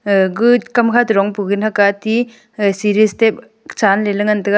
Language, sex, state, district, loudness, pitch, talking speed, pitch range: Wancho, female, Arunachal Pradesh, Longding, -15 LUFS, 210 Hz, 195 wpm, 200-225 Hz